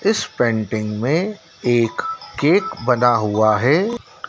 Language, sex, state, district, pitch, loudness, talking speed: Hindi, male, Madhya Pradesh, Dhar, 125 Hz, -19 LUFS, 110 wpm